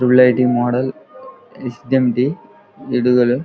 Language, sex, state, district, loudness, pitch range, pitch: Telugu, male, Andhra Pradesh, Krishna, -16 LUFS, 120-130 Hz, 125 Hz